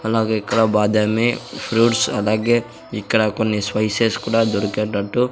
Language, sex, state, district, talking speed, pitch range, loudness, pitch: Telugu, male, Andhra Pradesh, Sri Satya Sai, 115 wpm, 105-115 Hz, -19 LUFS, 110 Hz